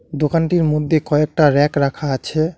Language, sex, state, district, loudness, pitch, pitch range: Bengali, male, West Bengal, Alipurduar, -17 LUFS, 150 Hz, 145-160 Hz